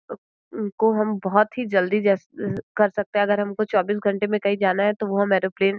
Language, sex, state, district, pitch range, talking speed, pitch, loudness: Hindi, female, Uttar Pradesh, Gorakhpur, 195-210 Hz, 240 wpm, 205 Hz, -22 LUFS